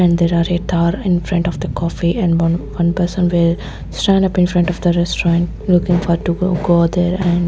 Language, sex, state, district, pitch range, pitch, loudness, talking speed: English, female, Chandigarh, Chandigarh, 170-180 Hz, 175 Hz, -16 LUFS, 225 wpm